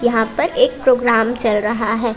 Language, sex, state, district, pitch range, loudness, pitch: Hindi, female, Jharkhand, Palamu, 225-255 Hz, -16 LUFS, 235 Hz